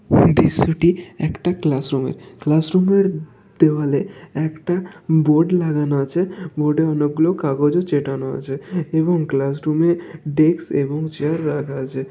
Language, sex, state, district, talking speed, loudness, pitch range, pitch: Bengali, male, West Bengal, Kolkata, 105 wpm, -19 LUFS, 145-175 Hz, 155 Hz